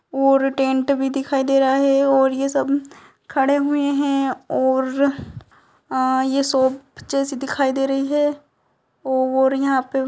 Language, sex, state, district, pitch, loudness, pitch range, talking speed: Hindi, female, Uttar Pradesh, Etah, 275 Hz, -19 LUFS, 265-275 Hz, 155 wpm